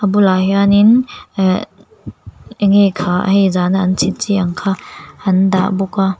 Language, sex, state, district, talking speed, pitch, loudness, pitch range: Mizo, female, Mizoram, Aizawl, 165 wpm, 195 Hz, -14 LUFS, 185-200 Hz